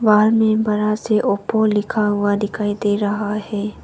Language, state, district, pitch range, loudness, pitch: Hindi, Arunachal Pradesh, Papum Pare, 205-215 Hz, -18 LUFS, 210 Hz